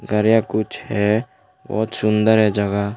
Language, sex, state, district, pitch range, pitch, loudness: Hindi, male, Tripura, West Tripura, 105-110 Hz, 110 Hz, -19 LUFS